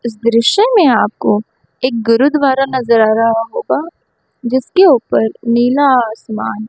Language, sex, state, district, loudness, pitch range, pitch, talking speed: Hindi, female, Chandigarh, Chandigarh, -13 LUFS, 225-270 Hz, 240 Hz, 125 wpm